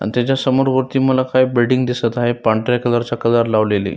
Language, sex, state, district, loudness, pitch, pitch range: Marathi, male, Maharashtra, Solapur, -16 LUFS, 120 Hz, 115-130 Hz